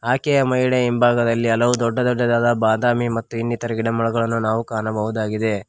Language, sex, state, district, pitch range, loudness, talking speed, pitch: Kannada, male, Karnataka, Koppal, 115-120 Hz, -19 LUFS, 125 wpm, 115 Hz